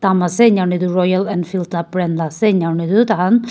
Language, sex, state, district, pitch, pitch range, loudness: Nagamese, female, Nagaland, Kohima, 185 Hz, 175-205 Hz, -16 LUFS